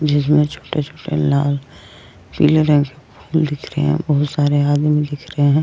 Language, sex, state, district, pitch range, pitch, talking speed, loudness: Hindi, female, Goa, North and South Goa, 145-150 Hz, 145 Hz, 170 wpm, -17 LUFS